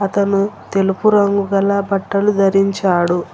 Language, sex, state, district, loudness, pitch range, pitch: Telugu, female, Telangana, Hyderabad, -16 LUFS, 195-200 Hz, 195 Hz